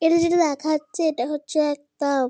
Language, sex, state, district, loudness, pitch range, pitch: Bengali, female, West Bengal, Kolkata, -22 LUFS, 290-325 Hz, 305 Hz